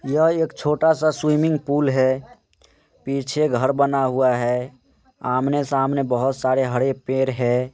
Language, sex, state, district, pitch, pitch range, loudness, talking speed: Hindi, male, Rajasthan, Nagaur, 135 Hz, 130-150 Hz, -21 LUFS, 145 wpm